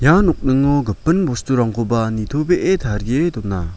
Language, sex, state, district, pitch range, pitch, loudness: Garo, male, Meghalaya, West Garo Hills, 110-160 Hz, 130 Hz, -18 LUFS